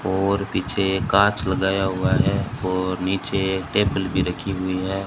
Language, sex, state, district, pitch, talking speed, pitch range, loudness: Hindi, male, Rajasthan, Bikaner, 95 Hz, 155 wpm, 95-100 Hz, -22 LUFS